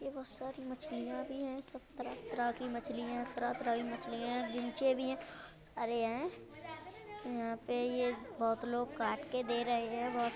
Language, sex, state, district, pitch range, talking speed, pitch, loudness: Hindi, female, Uttar Pradesh, Budaun, 235-265 Hz, 180 wpm, 245 Hz, -39 LUFS